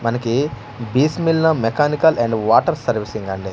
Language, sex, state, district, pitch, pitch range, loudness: Telugu, male, Andhra Pradesh, Manyam, 120 Hz, 110-150 Hz, -18 LUFS